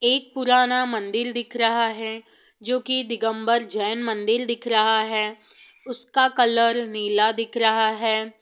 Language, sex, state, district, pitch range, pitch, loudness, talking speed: Hindi, female, Bihar, Saran, 220-245 Hz, 230 Hz, -21 LUFS, 140 wpm